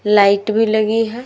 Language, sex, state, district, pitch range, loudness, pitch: Hindi, female, Uttar Pradesh, Muzaffarnagar, 210-225 Hz, -15 LUFS, 220 Hz